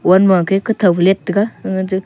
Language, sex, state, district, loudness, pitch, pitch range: Wancho, male, Arunachal Pradesh, Longding, -14 LUFS, 190 Hz, 185-195 Hz